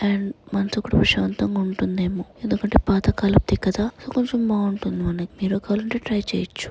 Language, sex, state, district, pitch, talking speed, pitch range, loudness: Telugu, female, Andhra Pradesh, Anantapur, 200 Hz, 125 wpm, 190-215 Hz, -22 LUFS